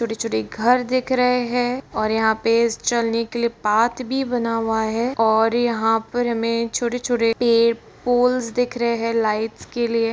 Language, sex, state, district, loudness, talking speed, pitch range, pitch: Hindi, female, Bihar, Kishanganj, -20 LUFS, 170 wpm, 225-245 Hz, 230 Hz